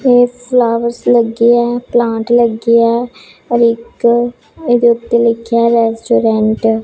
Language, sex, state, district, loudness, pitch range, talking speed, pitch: Punjabi, female, Punjab, Pathankot, -12 LUFS, 230-240 Hz, 130 wpm, 235 Hz